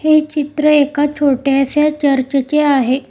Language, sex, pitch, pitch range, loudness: Marathi, female, 290 Hz, 275-300 Hz, -14 LUFS